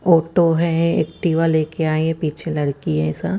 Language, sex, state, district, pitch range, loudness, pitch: Hindi, female, Chandigarh, Chandigarh, 155-165 Hz, -19 LUFS, 160 Hz